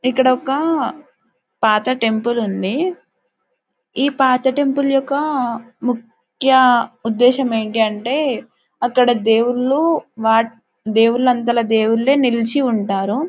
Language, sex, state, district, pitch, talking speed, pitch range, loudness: Telugu, female, Telangana, Karimnagar, 245 Hz, 90 wpm, 225-270 Hz, -17 LUFS